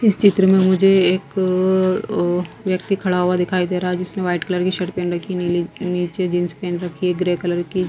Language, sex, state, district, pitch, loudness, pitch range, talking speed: Hindi, female, Himachal Pradesh, Shimla, 180 Hz, -19 LUFS, 175-185 Hz, 215 wpm